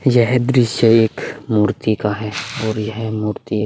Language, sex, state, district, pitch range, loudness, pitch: Hindi, male, Bihar, Vaishali, 105-125 Hz, -17 LUFS, 110 Hz